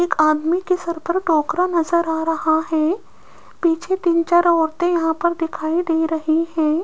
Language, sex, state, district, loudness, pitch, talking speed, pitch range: Hindi, female, Rajasthan, Jaipur, -19 LUFS, 335 Hz, 175 wpm, 320-345 Hz